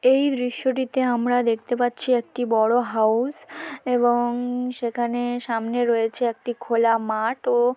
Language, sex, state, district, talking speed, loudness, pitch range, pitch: Bengali, female, West Bengal, Malda, 130 wpm, -22 LUFS, 235-250 Hz, 245 Hz